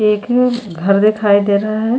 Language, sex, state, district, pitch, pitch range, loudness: Hindi, female, Goa, North and South Goa, 215 Hz, 200-230 Hz, -14 LUFS